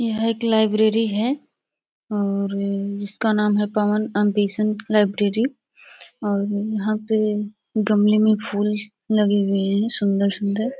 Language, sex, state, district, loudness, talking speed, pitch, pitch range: Hindi, female, Bihar, Gopalganj, -21 LUFS, 120 wpm, 210 Hz, 205-220 Hz